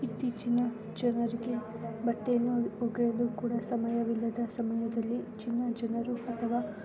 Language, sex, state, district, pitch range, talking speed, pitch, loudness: Kannada, female, Karnataka, Bijapur, 230-240 Hz, 95 wpm, 235 Hz, -33 LUFS